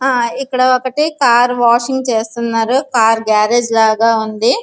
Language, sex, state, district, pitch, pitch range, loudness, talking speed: Telugu, female, Andhra Pradesh, Visakhapatnam, 240 Hz, 225-255 Hz, -13 LUFS, 115 wpm